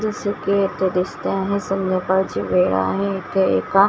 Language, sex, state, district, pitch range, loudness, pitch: Marathi, female, Maharashtra, Washim, 185-200 Hz, -20 LUFS, 195 Hz